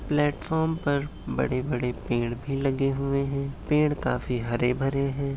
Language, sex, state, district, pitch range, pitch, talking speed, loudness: Hindi, male, Uttar Pradesh, Hamirpur, 125-145 Hz, 140 Hz, 155 wpm, -27 LUFS